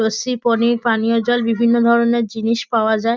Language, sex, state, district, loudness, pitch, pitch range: Bengali, female, West Bengal, North 24 Parganas, -17 LUFS, 230 Hz, 225-235 Hz